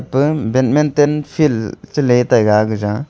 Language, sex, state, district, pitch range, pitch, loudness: Wancho, male, Arunachal Pradesh, Longding, 110-150 Hz, 135 Hz, -15 LUFS